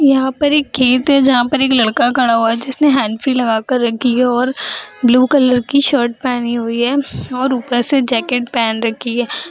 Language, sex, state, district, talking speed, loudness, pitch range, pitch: Hindi, female, Bihar, Jahanabad, 215 wpm, -14 LUFS, 240-270 Hz, 250 Hz